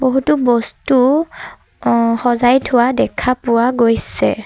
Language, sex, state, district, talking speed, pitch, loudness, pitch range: Assamese, female, Assam, Sonitpur, 110 wpm, 245 Hz, -15 LUFS, 235-260 Hz